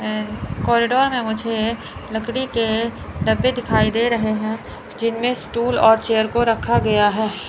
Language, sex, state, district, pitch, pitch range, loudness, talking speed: Hindi, male, Chandigarh, Chandigarh, 225 Hz, 215-235 Hz, -19 LUFS, 150 wpm